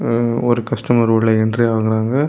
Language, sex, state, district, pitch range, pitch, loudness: Tamil, male, Tamil Nadu, Kanyakumari, 110-120 Hz, 115 Hz, -16 LUFS